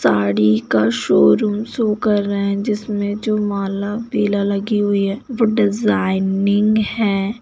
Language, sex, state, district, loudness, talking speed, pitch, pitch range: Hindi, female, Bihar, Saharsa, -17 LUFS, 135 wpm, 205 Hz, 195-215 Hz